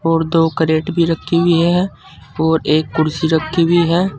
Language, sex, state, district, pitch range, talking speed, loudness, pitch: Hindi, male, Uttar Pradesh, Saharanpur, 160-170 Hz, 185 wpm, -15 LUFS, 165 Hz